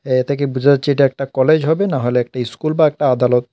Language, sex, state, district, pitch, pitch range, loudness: Bengali, male, Tripura, South Tripura, 135 Hz, 125-150 Hz, -16 LUFS